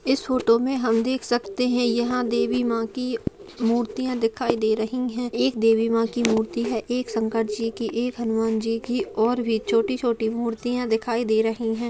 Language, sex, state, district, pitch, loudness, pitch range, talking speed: Hindi, female, Bihar, Jahanabad, 230 Hz, -24 LUFS, 225-245 Hz, 190 wpm